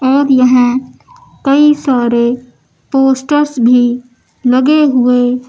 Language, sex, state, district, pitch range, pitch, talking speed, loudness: Hindi, female, Uttar Pradesh, Lucknow, 245-280 Hz, 255 Hz, 85 wpm, -11 LUFS